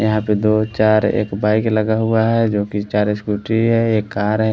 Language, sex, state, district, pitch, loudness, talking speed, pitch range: Hindi, male, Haryana, Rohtak, 110 Hz, -17 LUFS, 210 wpm, 105-110 Hz